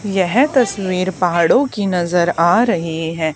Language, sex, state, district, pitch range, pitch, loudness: Hindi, female, Haryana, Charkhi Dadri, 170-215 Hz, 185 Hz, -16 LUFS